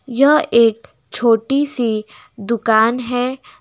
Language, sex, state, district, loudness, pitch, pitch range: Hindi, female, West Bengal, Alipurduar, -16 LUFS, 235 Hz, 220-255 Hz